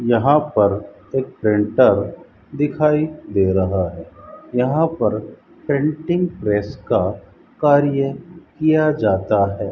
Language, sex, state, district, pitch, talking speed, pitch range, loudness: Hindi, male, Rajasthan, Bikaner, 130 Hz, 105 wpm, 105-150 Hz, -19 LUFS